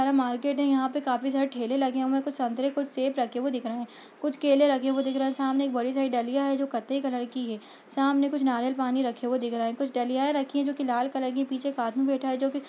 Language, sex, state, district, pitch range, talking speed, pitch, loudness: Hindi, female, Uttar Pradesh, Budaun, 250-275 Hz, 310 wpm, 270 Hz, -27 LUFS